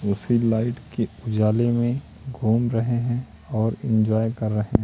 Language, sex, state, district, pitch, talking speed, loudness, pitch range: Hindi, male, Madhya Pradesh, Katni, 115 Hz, 150 wpm, -23 LUFS, 110-120 Hz